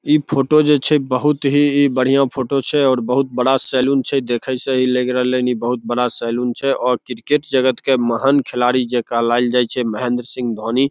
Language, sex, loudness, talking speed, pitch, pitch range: Maithili, male, -17 LUFS, 210 wpm, 130 Hz, 125-135 Hz